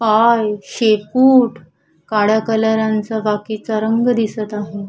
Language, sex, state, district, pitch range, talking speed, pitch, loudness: Marathi, female, Maharashtra, Chandrapur, 210-225 Hz, 110 wpm, 220 Hz, -16 LUFS